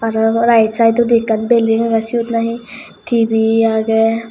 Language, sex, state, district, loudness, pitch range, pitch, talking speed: Chakma, female, Tripura, West Tripura, -14 LUFS, 225-230 Hz, 225 Hz, 125 wpm